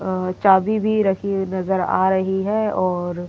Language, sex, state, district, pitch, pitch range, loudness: Hindi, female, Delhi, New Delhi, 190 Hz, 185-200 Hz, -19 LUFS